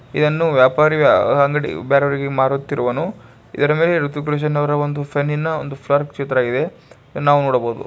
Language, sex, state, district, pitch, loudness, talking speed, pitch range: Kannada, male, Karnataka, Bijapur, 145 Hz, -17 LUFS, 100 wpm, 140-150 Hz